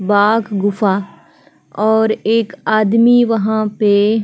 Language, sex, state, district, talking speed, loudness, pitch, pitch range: Hindi, female, Chhattisgarh, Kabirdham, 115 wpm, -14 LUFS, 215 Hz, 205-220 Hz